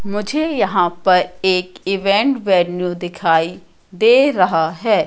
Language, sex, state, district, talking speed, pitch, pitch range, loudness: Hindi, female, Madhya Pradesh, Katni, 120 wpm, 185 Hz, 175-210 Hz, -16 LUFS